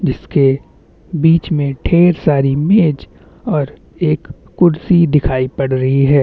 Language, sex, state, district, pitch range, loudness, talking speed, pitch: Hindi, male, Chhattisgarh, Bastar, 135-170 Hz, -14 LUFS, 125 wpm, 150 Hz